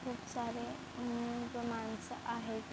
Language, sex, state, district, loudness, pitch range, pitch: Marathi, female, Maharashtra, Chandrapur, -41 LUFS, 230-240 Hz, 235 Hz